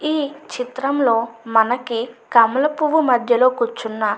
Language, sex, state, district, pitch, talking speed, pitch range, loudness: Telugu, female, Andhra Pradesh, Anantapur, 245 Hz, 115 wpm, 230-280 Hz, -18 LUFS